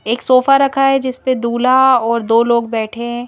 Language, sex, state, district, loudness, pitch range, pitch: Hindi, female, Madhya Pradesh, Bhopal, -14 LUFS, 235-260 Hz, 245 Hz